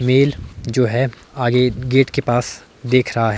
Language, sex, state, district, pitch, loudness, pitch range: Hindi, male, Himachal Pradesh, Shimla, 125 Hz, -18 LUFS, 120-130 Hz